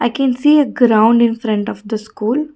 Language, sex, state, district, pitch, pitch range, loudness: English, female, Karnataka, Bangalore, 235 Hz, 220-265 Hz, -14 LUFS